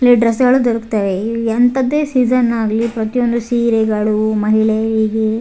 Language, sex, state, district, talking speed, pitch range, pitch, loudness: Kannada, female, Karnataka, Raichur, 135 wpm, 220-245 Hz, 230 Hz, -15 LUFS